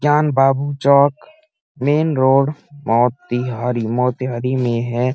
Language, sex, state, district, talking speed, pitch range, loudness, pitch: Hindi, male, Uttar Pradesh, Muzaffarnagar, 95 wpm, 125-145 Hz, -17 LUFS, 130 Hz